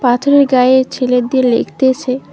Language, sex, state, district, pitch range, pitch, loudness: Bengali, female, West Bengal, Cooch Behar, 250-265 Hz, 260 Hz, -12 LUFS